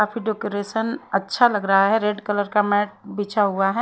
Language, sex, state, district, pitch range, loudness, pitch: Hindi, female, Haryana, Rohtak, 200-220 Hz, -21 LUFS, 205 Hz